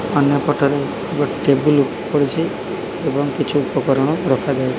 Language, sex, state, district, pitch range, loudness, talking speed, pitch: Odia, male, Odisha, Malkangiri, 135-145 Hz, -18 LUFS, 115 wpm, 145 Hz